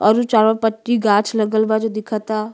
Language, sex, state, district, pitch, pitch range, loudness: Bhojpuri, female, Uttar Pradesh, Gorakhpur, 220 Hz, 215-225 Hz, -17 LUFS